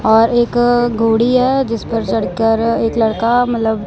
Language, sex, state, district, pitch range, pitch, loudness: Hindi, male, Punjab, Kapurthala, 225-240 Hz, 230 Hz, -14 LUFS